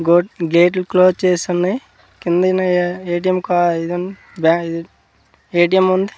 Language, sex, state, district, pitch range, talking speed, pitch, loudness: Telugu, male, Andhra Pradesh, Manyam, 175-185 Hz, 135 wpm, 180 Hz, -16 LUFS